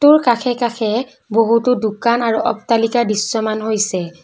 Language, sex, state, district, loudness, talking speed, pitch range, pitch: Assamese, female, Assam, Kamrup Metropolitan, -17 LUFS, 115 wpm, 215-240 Hz, 225 Hz